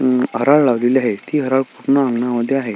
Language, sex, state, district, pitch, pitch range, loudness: Marathi, male, Maharashtra, Sindhudurg, 130 Hz, 120-135 Hz, -16 LUFS